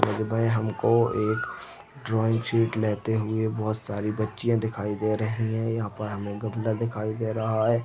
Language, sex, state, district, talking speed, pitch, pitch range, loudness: Hindi, male, Chhattisgarh, Balrampur, 160 wpm, 110 Hz, 110-115 Hz, -27 LUFS